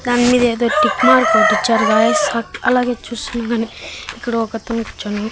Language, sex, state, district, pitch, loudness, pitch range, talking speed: Telugu, male, Andhra Pradesh, Annamaya, 235 Hz, -16 LUFS, 225-245 Hz, 160 wpm